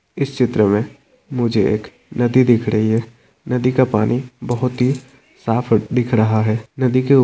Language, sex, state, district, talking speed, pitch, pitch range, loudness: Hindi, male, Bihar, Kishanganj, 180 wpm, 120 Hz, 110-130 Hz, -18 LUFS